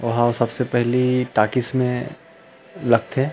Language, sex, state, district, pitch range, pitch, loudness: Chhattisgarhi, male, Chhattisgarh, Rajnandgaon, 120-125 Hz, 125 Hz, -20 LUFS